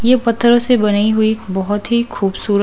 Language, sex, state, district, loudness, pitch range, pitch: Hindi, female, Delhi, New Delhi, -15 LUFS, 205-235 Hz, 220 Hz